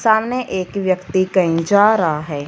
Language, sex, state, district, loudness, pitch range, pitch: Hindi, female, Punjab, Fazilka, -17 LUFS, 165-210 Hz, 185 Hz